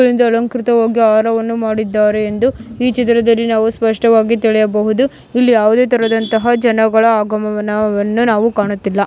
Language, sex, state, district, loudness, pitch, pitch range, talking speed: Kannada, female, Karnataka, Mysore, -13 LUFS, 225 Hz, 215-235 Hz, 110 wpm